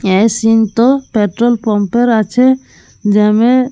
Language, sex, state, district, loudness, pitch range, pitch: Bengali, female, Jharkhand, Jamtara, -12 LUFS, 210-245 Hz, 225 Hz